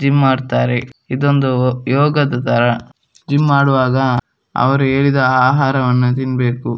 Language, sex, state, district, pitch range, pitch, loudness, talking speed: Kannada, male, Karnataka, Dakshina Kannada, 125-140 Hz, 130 Hz, -15 LUFS, 95 wpm